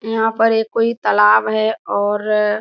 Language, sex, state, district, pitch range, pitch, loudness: Hindi, female, Bihar, Kishanganj, 210-225 Hz, 215 Hz, -16 LUFS